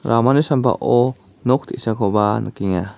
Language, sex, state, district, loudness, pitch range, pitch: Garo, male, Meghalaya, West Garo Hills, -18 LUFS, 105-130 Hz, 115 Hz